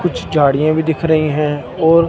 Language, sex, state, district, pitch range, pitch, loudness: Hindi, male, Punjab, Fazilka, 150-160 Hz, 155 Hz, -15 LUFS